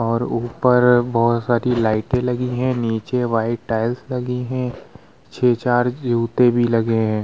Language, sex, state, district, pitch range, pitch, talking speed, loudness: Hindi, male, Bihar, Vaishali, 115-125 Hz, 120 Hz, 150 wpm, -19 LUFS